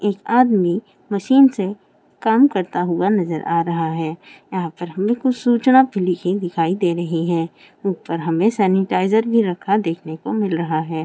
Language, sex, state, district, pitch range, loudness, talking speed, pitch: Hindi, female, Rajasthan, Churu, 170-210 Hz, -19 LUFS, 175 wpm, 185 Hz